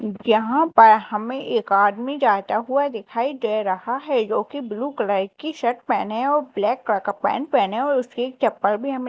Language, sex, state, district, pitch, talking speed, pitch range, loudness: Hindi, female, Madhya Pradesh, Dhar, 240 Hz, 190 wpm, 210-275 Hz, -21 LUFS